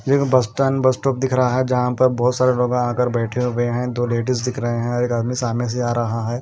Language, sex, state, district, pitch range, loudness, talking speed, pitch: Hindi, male, Punjab, Kapurthala, 120-130 Hz, -19 LUFS, 270 wpm, 125 Hz